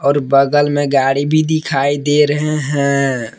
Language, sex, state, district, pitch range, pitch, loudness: Hindi, male, Jharkhand, Palamu, 140-145 Hz, 145 Hz, -14 LUFS